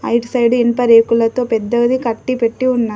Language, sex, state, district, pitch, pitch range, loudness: Telugu, female, Telangana, Adilabad, 235 Hz, 230-245 Hz, -14 LUFS